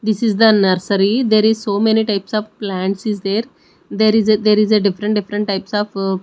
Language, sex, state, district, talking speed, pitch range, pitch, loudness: English, female, Odisha, Nuapada, 220 wpm, 200-215 Hz, 210 Hz, -16 LUFS